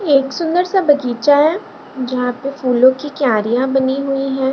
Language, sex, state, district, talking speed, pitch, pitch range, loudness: Hindi, female, Bihar, Lakhisarai, 170 wpm, 270 Hz, 255-290 Hz, -16 LUFS